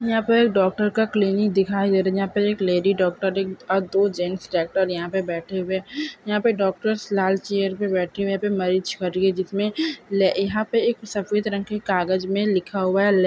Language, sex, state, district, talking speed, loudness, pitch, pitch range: Hindi, female, Maharashtra, Solapur, 230 wpm, -22 LUFS, 195 Hz, 190-210 Hz